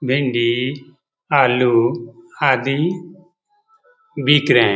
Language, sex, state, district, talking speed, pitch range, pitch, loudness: Hindi, male, Bihar, Jamui, 75 wpm, 125-180 Hz, 140 Hz, -17 LUFS